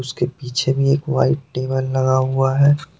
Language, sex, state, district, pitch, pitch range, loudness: Hindi, male, Jharkhand, Deoghar, 135 Hz, 130-140 Hz, -18 LUFS